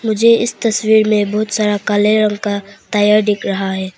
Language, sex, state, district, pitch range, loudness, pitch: Hindi, female, Arunachal Pradesh, Papum Pare, 205-215 Hz, -14 LUFS, 210 Hz